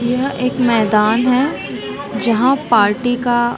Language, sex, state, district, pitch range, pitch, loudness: Hindi, female, Chhattisgarh, Bilaspur, 230-255 Hz, 245 Hz, -16 LUFS